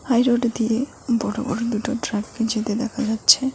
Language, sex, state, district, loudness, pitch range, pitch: Bengali, female, West Bengal, Cooch Behar, -22 LUFS, 225-245 Hz, 235 Hz